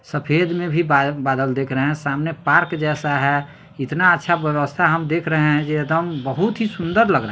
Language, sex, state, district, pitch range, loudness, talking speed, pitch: Hindi, male, Bihar, Sitamarhi, 145-170 Hz, -19 LUFS, 215 wpm, 150 Hz